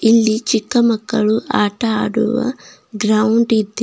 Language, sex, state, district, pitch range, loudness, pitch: Kannada, female, Karnataka, Bidar, 215-230 Hz, -16 LUFS, 225 Hz